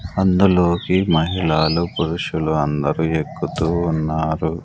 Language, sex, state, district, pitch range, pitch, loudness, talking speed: Telugu, male, Andhra Pradesh, Sri Satya Sai, 80-90 Hz, 80 Hz, -19 LUFS, 80 wpm